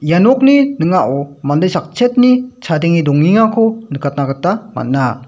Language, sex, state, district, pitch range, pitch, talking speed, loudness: Garo, male, Meghalaya, West Garo Hills, 140-225 Hz, 175 Hz, 115 wpm, -13 LUFS